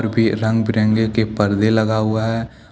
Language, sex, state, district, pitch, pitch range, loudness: Hindi, male, Jharkhand, Deoghar, 110 Hz, 110-115 Hz, -18 LUFS